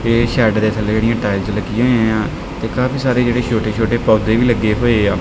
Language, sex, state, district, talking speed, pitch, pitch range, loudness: Punjabi, male, Punjab, Kapurthala, 220 wpm, 110 Hz, 110-120 Hz, -16 LUFS